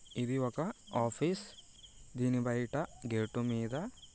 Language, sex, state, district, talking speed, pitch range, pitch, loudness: Telugu, male, Andhra Pradesh, Srikakulam, 130 wpm, 115-140 Hz, 125 Hz, -36 LUFS